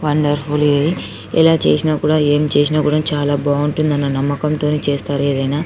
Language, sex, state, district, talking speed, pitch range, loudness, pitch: Telugu, female, Telangana, Karimnagar, 150 wpm, 145-150 Hz, -16 LUFS, 150 Hz